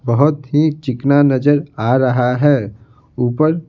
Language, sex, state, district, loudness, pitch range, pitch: Hindi, male, Bihar, Patna, -15 LUFS, 125-145 Hz, 135 Hz